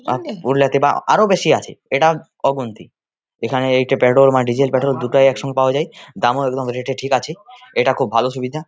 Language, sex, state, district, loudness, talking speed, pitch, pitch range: Bengali, male, West Bengal, Purulia, -17 LUFS, 150 wpm, 135 Hz, 130-140 Hz